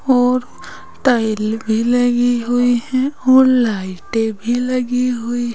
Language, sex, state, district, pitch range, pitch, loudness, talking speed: Hindi, female, Uttar Pradesh, Saharanpur, 225-250 Hz, 245 Hz, -16 LUFS, 120 wpm